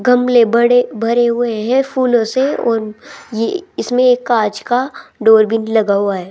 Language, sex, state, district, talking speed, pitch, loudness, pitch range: Hindi, female, Rajasthan, Jaipur, 170 wpm, 235 Hz, -14 LUFS, 220-250 Hz